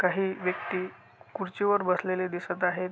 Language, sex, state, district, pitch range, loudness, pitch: Marathi, male, Maharashtra, Aurangabad, 180-190 Hz, -29 LUFS, 185 Hz